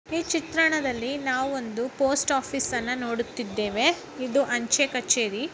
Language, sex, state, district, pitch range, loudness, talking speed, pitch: Kannada, male, Karnataka, Bellary, 240-285 Hz, -25 LUFS, 120 wpm, 265 Hz